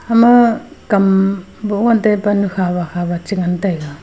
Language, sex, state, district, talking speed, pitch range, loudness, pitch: Wancho, female, Arunachal Pradesh, Longding, 165 wpm, 180-215 Hz, -15 LUFS, 195 Hz